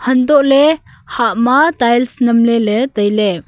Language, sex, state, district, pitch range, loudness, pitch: Wancho, female, Arunachal Pradesh, Longding, 230-275 Hz, -12 LUFS, 240 Hz